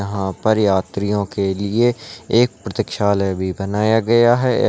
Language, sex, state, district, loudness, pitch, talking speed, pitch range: Hindi, male, Bihar, Darbhanga, -18 LUFS, 100 Hz, 140 wpm, 100-115 Hz